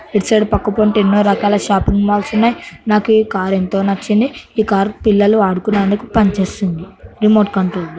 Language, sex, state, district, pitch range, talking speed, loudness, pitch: Telugu, female, Telangana, Nalgonda, 195-215 Hz, 160 wpm, -14 LUFS, 205 Hz